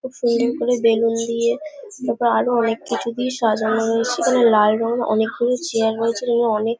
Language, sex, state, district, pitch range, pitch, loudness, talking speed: Bengali, female, West Bengal, Paschim Medinipur, 225-245 Hz, 235 Hz, -19 LUFS, 175 wpm